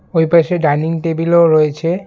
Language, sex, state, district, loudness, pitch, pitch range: Bengali, male, West Bengal, Alipurduar, -13 LUFS, 165 Hz, 160-170 Hz